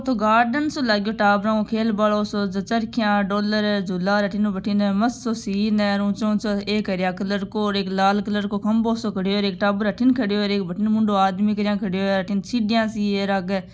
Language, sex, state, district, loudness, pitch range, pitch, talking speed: Marwari, female, Rajasthan, Nagaur, -21 LUFS, 200-215 Hz, 205 Hz, 195 wpm